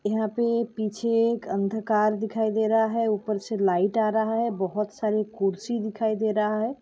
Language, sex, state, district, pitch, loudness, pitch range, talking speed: Hindi, female, Goa, North and South Goa, 220 Hz, -25 LUFS, 210-225 Hz, 195 wpm